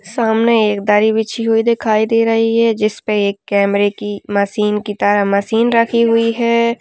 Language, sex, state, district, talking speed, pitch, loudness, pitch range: Hindi, female, Uttarakhand, Tehri Garhwal, 175 wpm, 220 Hz, -15 LUFS, 205-230 Hz